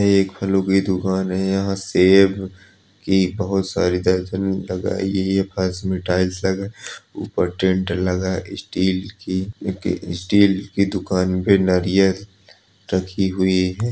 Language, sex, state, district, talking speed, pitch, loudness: Hindi, male, Chhattisgarh, Balrampur, 150 wpm, 95 Hz, -20 LUFS